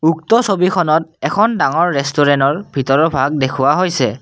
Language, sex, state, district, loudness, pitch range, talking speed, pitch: Assamese, male, Assam, Kamrup Metropolitan, -15 LUFS, 135-180 Hz, 130 wpm, 155 Hz